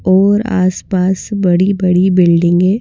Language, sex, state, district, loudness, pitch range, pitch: Hindi, female, Madhya Pradesh, Bhopal, -12 LUFS, 180-195 Hz, 185 Hz